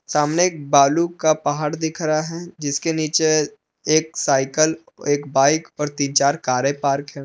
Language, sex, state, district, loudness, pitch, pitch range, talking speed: Hindi, male, Jharkhand, Palamu, -20 LUFS, 150 Hz, 140-160 Hz, 165 wpm